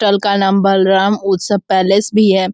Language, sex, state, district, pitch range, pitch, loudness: Hindi, female, Bihar, Sitamarhi, 190-205 Hz, 195 Hz, -13 LUFS